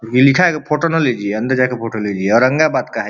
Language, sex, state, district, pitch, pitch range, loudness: Bhojpuri, male, Uttar Pradesh, Ghazipur, 125 Hz, 110-150 Hz, -15 LUFS